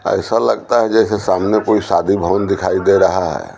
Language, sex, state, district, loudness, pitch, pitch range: Hindi, male, Bihar, Patna, -15 LUFS, 100 Hz, 95-105 Hz